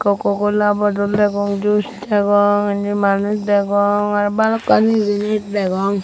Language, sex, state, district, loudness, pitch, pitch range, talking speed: Chakma, female, Tripura, Unakoti, -17 LUFS, 205 Hz, 205-210 Hz, 130 wpm